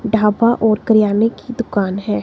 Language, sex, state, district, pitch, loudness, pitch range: Hindi, female, Himachal Pradesh, Shimla, 220 Hz, -16 LUFS, 205-230 Hz